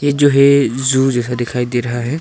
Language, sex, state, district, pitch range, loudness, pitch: Hindi, male, Arunachal Pradesh, Papum Pare, 120-140 Hz, -14 LUFS, 130 Hz